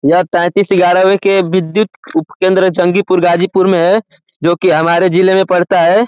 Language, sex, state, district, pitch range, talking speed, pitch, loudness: Hindi, male, Uttar Pradesh, Ghazipur, 175-195 Hz, 165 wpm, 185 Hz, -11 LUFS